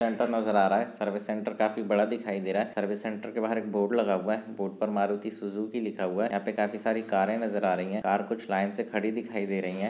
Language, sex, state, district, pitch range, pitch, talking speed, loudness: Hindi, male, Maharashtra, Sindhudurg, 100-110 Hz, 105 Hz, 285 wpm, -29 LUFS